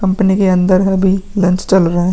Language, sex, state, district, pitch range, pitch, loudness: Hindi, male, Bihar, Vaishali, 185-195 Hz, 190 Hz, -13 LUFS